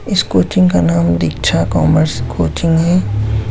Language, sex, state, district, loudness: Hindi, male, Bihar, Samastipur, -14 LUFS